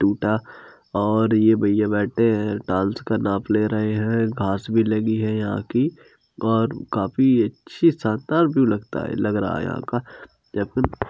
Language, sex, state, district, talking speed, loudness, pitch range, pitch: Hindi, male, Uttar Pradesh, Jalaun, 160 wpm, -22 LUFS, 105-115 Hz, 110 Hz